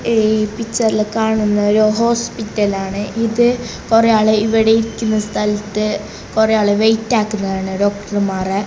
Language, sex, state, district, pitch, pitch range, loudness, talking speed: Malayalam, female, Kerala, Kasaragod, 215 Hz, 205-225 Hz, -16 LUFS, 110 wpm